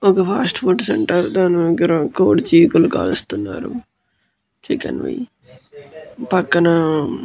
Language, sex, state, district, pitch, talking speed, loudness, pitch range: Telugu, male, Andhra Pradesh, Guntur, 175 Hz, 110 wpm, -16 LUFS, 165-240 Hz